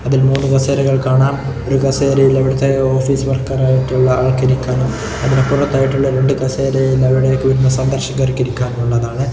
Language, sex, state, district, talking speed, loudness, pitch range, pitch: Malayalam, male, Kerala, Kozhikode, 120 wpm, -14 LUFS, 130-135 Hz, 135 Hz